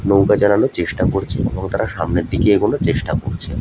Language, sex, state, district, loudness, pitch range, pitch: Bengali, male, West Bengal, Jhargram, -17 LUFS, 85-105 Hz, 100 Hz